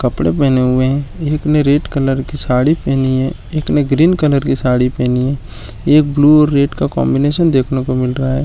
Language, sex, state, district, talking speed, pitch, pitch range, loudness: Hindi, male, Jharkhand, Jamtara, 235 wpm, 135 Hz, 130-145 Hz, -14 LUFS